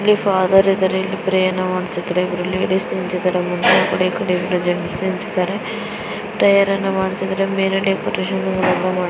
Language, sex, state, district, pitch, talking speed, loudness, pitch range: Kannada, female, Karnataka, Mysore, 185 Hz, 80 wpm, -18 LUFS, 180-195 Hz